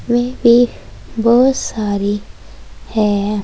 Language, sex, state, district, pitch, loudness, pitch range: Hindi, female, Uttar Pradesh, Saharanpur, 210 Hz, -15 LUFS, 200-240 Hz